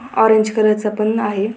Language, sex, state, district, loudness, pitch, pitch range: Marathi, female, Maharashtra, Pune, -16 LUFS, 215 Hz, 210-220 Hz